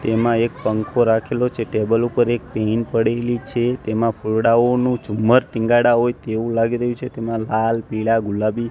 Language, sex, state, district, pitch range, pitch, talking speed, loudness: Gujarati, male, Gujarat, Gandhinagar, 110-120 Hz, 115 Hz, 165 wpm, -19 LUFS